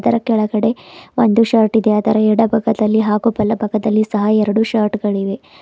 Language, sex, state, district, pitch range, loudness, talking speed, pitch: Kannada, female, Karnataka, Bidar, 215-225 Hz, -15 LUFS, 140 wpm, 215 Hz